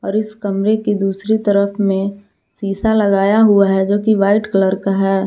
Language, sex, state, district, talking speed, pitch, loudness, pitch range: Hindi, female, Jharkhand, Palamu, 180 wpm, 200 Hz, -15 LUFS, 195-210 Hz